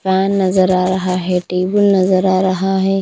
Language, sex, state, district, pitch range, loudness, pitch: Hindi, female, Punjab, Kapurthala, 185-190 Hz, -15 LUFS, 190 Hz